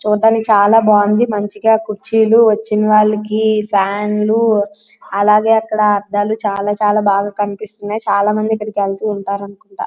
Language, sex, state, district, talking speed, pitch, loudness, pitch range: Telugu, female, Andhra Pradesh, Srikakulam, 115 wpm, 210 Hz, -14 LUFS, 205-220 Hz